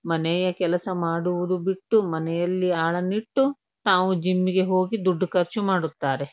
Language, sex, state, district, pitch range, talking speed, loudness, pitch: Kannada, female, Karnataka, Dharwad, 175-190 Hz, 125 wpm, -24 LUFS, 185 Hz